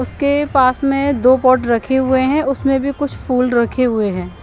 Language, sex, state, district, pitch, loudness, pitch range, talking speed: Hindi, female, Chandigarh, Chandigarh, 260 Hz, -15 LUFS, 250-275 Hz, 205 wpm